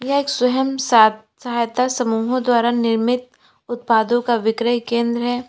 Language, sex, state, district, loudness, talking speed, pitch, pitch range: Hindi, female, Uttar Pradesh, Lalitpur, -18 LUFS, 130 wpm, 240 Hz, 235-250 Hz